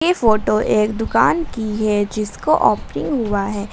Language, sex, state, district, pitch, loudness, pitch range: Hindi, female, Jharkhand, Garhwa, 215 Hz, -18 LUFS, 210-225 Hz